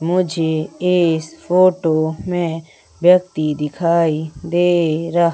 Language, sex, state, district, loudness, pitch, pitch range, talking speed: Hindi, female, Madhya Pradesh, Umaria, -17 LUFS, 165 Hz, 160-175 Hz, 90 wpm